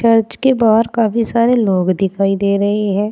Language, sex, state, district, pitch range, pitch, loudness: Hindi, female, Uttar Pradesh, Saharanpur, 200-230 Hz, 220 Hz, -14 LUFS